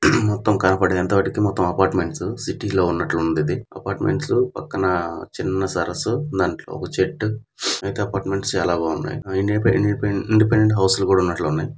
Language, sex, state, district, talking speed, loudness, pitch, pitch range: Telugu, male, Andhra Pradesh, Guntur, 125 wpm, -21 LUFS, 95 Hz, 90-105 Hz